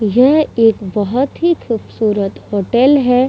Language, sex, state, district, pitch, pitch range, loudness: Hindi, female, Uttar Pradesh, Muzaffarnagar, 235 Hz, 210-265 Hz, -14 LUFS